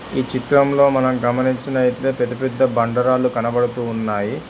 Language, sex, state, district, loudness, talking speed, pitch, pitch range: Telugu, male, Telangana, Hyderabad, -18 LUFS, 120 wpm, 125 Hz, 120-130 Hz